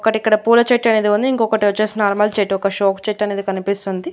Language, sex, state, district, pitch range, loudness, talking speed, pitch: Telugu, female, Andhra Pradesh, Annamaya, 200-220 Hz, -17 LUFS, 220 wpm, 210 Hz